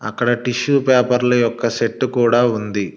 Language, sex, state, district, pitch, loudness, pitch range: Telugu, male, Telangana, Hyderabad, 120 Hz, -17 LUFS, 115-125 Hz